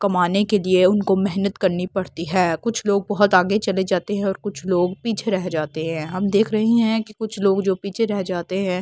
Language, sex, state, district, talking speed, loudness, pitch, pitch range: Hindi, female, Delhi, New Delhi, 230 wpm, -20 LUFS, 195 Hz, 185-205 Hz